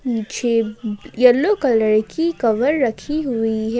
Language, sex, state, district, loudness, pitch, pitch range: Hindi, female, Jharkhand, Palamu, -18 LUFS, 240 Hz, 220-275 Hz